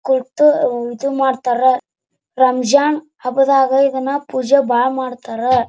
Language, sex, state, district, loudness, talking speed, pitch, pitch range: Kannada, male, Karnataka, Dharwad, -16 LUFS, 105 wpm, 260 Hz, 250-275 Hz